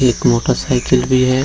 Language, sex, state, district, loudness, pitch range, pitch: Hindi, male, Bihar, Gaya, -15 LUFS, 125-130 Hz, 130 Hz